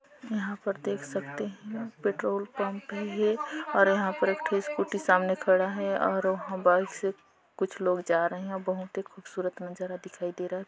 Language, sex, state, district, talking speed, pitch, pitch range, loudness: Hindi, female, Chhattisgarh, Sarguja, 195 wpm, 195 Hz, 185-205 Hz, -29 LUFS